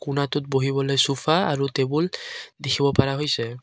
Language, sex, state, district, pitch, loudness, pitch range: Assamese, male, Assam, Kamrup Metropolitan, 140 Hz, -23 LUFS, 135-145 Hz